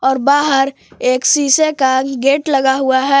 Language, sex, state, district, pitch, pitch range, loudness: Hindi, female, Jharkhand, Palamu, 270 Hz, 265-285 Hz, -14 LUFS